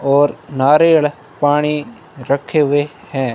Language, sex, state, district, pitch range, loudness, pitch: Hindi, male, Rajasthan, Bikaner, 140-150 Hz, -15 LUFS, 145 Hz